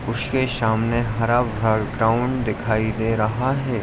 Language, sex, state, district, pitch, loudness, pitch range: Hindi, male, Uttar Pradesh, Ghazipur, 115 Hz, -21 LUFS, 110-125 Hz